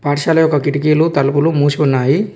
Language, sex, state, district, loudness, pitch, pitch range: Telugu, male, Telangana, Komaram Bheem, -14 LUFS, 145 Hz, 145-160 Hz